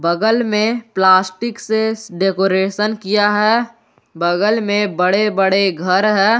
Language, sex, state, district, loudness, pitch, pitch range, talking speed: Hindi, male, Jharkhand, Garhwa, -16 LUFS, 205 Hz, 190-220 Hz, 120 wpm